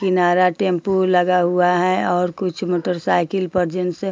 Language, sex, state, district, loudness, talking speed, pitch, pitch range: Hindi, female, Bihar, Bhagalpur, -18 LUFS, 175 wpm, 180 Hz, 180-185 Hz